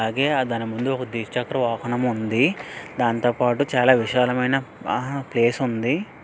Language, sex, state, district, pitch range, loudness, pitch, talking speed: Telugu, male, Andhra Pradesh, Srikakulam, 115-130 Hz, -22 LUFS, 125 Hz, 125 wpm